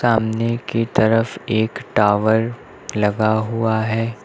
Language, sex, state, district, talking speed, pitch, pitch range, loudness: Hindi, male, Uttar Pradesh, Lucknow, 115 wpm, 110 Hz, 110-115 Hz, -19 LUFS